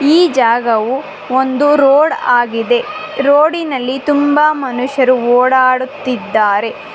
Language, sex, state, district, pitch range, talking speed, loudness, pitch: Kannada, female, Karnataka, Bangalore, 245-290 Hz, 80 wpm, -13 LUFS, 260 Hz